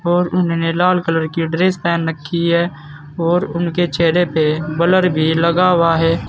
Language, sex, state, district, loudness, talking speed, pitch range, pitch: Hindi, male, Uttar Pradesh, Saharanpur, -16 LUFS, 170 wpm, 165-175 Hz, 170 Hz